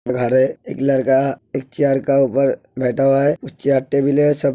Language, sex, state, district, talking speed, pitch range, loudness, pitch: Hindi, male, Uttar Pradesh, Hamirpur, 160 wpm, 130-140 Hz, -18 LUFS, 135 Hz